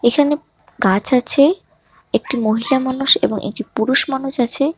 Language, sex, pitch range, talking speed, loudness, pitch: Bengali, male, 245-285 Hz, 140 wpm, -17 LUFS, 270 Hz